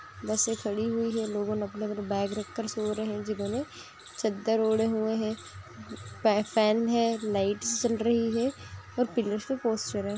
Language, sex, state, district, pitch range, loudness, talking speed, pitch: Hindi, female, Maharashtra, Nagpur, 210-230 Hz, -29 LUFS, 160 wpm, 220 Hz